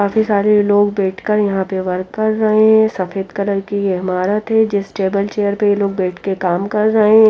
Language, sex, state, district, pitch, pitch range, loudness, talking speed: Hindi, female, Haryana, Rohtak, 200 Hz, 190-215 Hz, -16 LUFS, 245 wpm